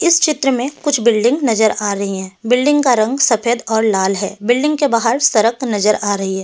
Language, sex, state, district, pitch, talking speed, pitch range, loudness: Hindi, female, Delhi, New Delhi, 230 Hz, 225 wpm, 210-265 Hz, -15 LUFS